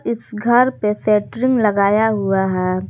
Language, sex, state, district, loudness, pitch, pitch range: Hindi, female, Jharkhand, Garhwa, -17 LUFS, 210 Hz, 200-235 Hz